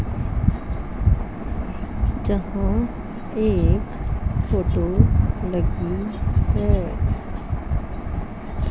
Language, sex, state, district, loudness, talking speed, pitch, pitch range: Hindi, female, Punjab, Pathankot, -24 LUFS, 35 wpm, 95 Hz, 85-100 Hz